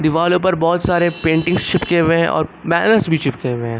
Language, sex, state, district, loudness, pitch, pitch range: Hindi, male, Uttar Pradesh, Lucknow, -16 LUFS, 170 Hz, 160-180 Hz